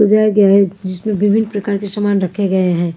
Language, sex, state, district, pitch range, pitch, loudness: Hindi, female, Maharashtra, Mumbai Suburban, 190-210 Hz, 205 Hz, -15 LUFS